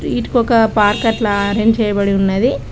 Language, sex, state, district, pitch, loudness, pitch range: Telugu, female, Telangana, Karimnagar, 215 Hz, -15 LUFS, 200-225 Hz